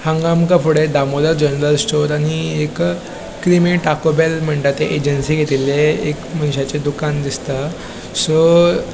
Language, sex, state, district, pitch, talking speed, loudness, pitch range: Konkani, male, Goa, North and South Goa, 150 Hz, 135 wpm, -16 LUFS, 145-160 Hz